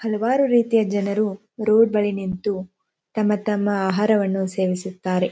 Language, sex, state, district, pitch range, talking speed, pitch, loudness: Kannada, female, Karnataka, Dharwad, 190-215 Hz, 100 wpm, 205 Hz, -21 LUFS